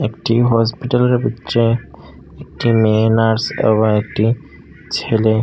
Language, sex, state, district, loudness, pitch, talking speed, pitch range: Bengali, male, Tripura, Unakoti, -16 LUFS, 115 Hz, 100 wpm, 110-120 Hz